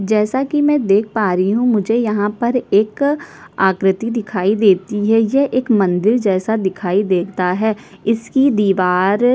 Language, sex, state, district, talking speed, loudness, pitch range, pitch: Hindi, female, Chhattisgarh, Sukma, 160 wpm, -16 LUFS, 195-235 Hz, 215 Hz